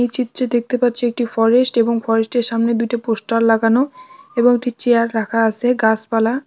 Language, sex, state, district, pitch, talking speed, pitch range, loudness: Bengali, female, West Bengal, Dakshin Dinajpur, 235 Hz, 195 wpm, 225-245 Hz, -16 LUFS